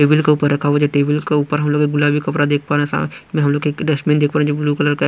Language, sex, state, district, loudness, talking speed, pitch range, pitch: Hindi, male, Punjab, Pathankot, -17 LUFS, 285 wpm, 145-150 Hz, 145 Hz